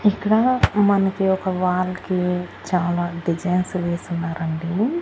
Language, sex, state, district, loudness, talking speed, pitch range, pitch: Telugu, female, Andhra Pradesh, Annamaya, -21 LUFS, 110 wpm, 175-195 Hz, 180 Hz